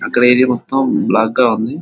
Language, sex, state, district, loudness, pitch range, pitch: Telugu, male, Telangana, Nalgonda, -14 LUFS, 115-130 Hz, 125 Hz